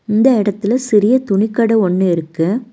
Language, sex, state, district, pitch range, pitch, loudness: Tamil, female, Tamil Nadu, Nilgiris, 195-235 Hz, 215 Hz, -14 LUFS